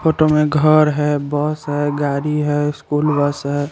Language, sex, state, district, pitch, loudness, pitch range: Hindi, male, Chandigarh, Chandigarh, 150 Hz, -17 LUFS, 145-150 Hz